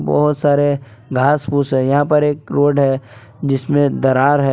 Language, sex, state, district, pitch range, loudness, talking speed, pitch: Hindi, male, Jharkhand, Palamu, 130-145 Hz, -16 LUFS, 170 wpm, 140 Hz